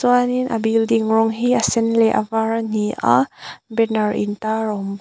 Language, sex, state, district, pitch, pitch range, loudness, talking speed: Mizo, female, Mizoram, Aizawl, 225 Hz, 220-230 Hz, -19 LUFS, 215 wpm